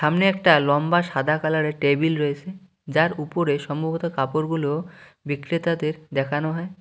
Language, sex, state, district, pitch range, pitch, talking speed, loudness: Bengali, male, West Bengal, Cooch Behar, 145-170 Hz, 155 Hz, 130 wpm, -22 LUFS